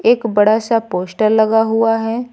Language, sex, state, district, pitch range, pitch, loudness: Hindi, female, Uttar Pradesh, Lucknow, 215-225 Hz, 225 Hz, -15 LUFS